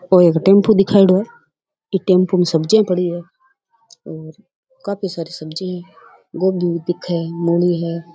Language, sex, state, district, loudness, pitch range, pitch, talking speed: Rajasthani, female, Rajasthan, Churu, -16 LUFS, 170-205 Hz, 185 Hz, 160 wpm